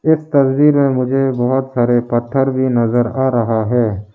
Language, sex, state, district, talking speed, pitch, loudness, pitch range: Hindi, male, Arunachal Pradesh, Lower Dibang Valley, 175 wpm, 130 Hz, -15 LUFS, 120-135 Hz